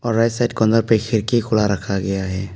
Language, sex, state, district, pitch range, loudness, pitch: Hindi, male, Arunachal Pradesh, Papum Pare, 100-115 Hz, -19 LUFS, 110 Hz